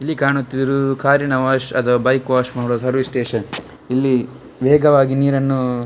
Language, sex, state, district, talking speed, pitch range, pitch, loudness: Kannada, male, Karnataka, Dakshina Kannada, 145 wpm, 125-140 Hz, 130 Hz, -17 LUFS